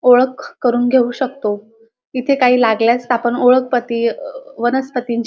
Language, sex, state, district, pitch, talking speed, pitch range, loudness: Marathi, female, Maharashtra, Dhule, 245 Hz, 125 wpm, 235-255 Hz, -16 LUFS